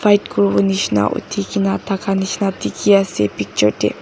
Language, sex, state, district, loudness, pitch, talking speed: Nagamese, female, Nagaland, Dimapur, -17 LUFS, 190 Hz, 165 wpm